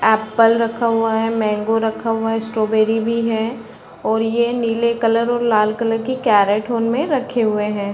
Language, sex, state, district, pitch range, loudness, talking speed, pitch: Hindi, female, Chhattisgarh, Raigarh, 220-230 Hz, -18 LUFS, 180 wpm, 225 Hz